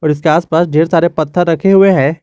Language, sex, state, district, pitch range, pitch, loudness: Hindi, male, Jharkhand, Garhwa, 155-175 Hz, 165 Hz, -11 LUFS